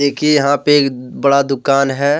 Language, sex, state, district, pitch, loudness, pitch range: Hindi, male, Jharkhand, Deoghar, 140 Hz, -14 LUFS, 135-145 Hz